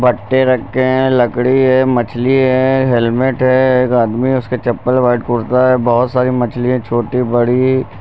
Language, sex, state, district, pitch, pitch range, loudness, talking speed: Hindi, male, Uttar Pradesh, Lucknow, 125 Hz, 120-130 Hz, -13 LUFS, 165 wpm